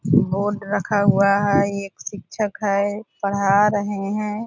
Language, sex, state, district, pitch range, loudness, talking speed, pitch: Hindi, female, Bihar, Purnia, 200-205 Hz, -20 LUFS, 175 wpm, 200 Hz